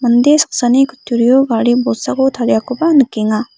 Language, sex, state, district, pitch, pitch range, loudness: Garo, female, Meghalaya, West Garo Hills, 255 Hz, 240-270 Hz, -13 LUFS